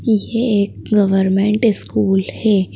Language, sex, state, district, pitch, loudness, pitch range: Hindi, female, Madhya Pradesh, Bhopal, 205 Hz, -16 LUFS, 195-220 Hz